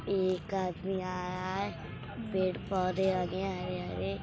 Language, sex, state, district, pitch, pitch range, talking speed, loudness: Hindi, male, Uttar Pradesh, Budaun, 185 Hz, 180-190 Hz, 130 wpm, -34 LUFS